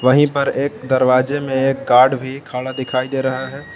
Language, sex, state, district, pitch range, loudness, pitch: Hindi, male, Jharkhand, Palamu, 130-135 Hz, -17 LUFS, 130 Hz